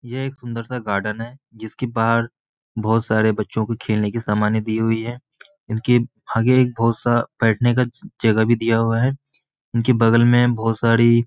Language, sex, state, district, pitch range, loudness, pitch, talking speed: Hindi, male, Bihar, Saharsa, 110-125 Hz, -19 LUFS, 115 Hz, 190 wpm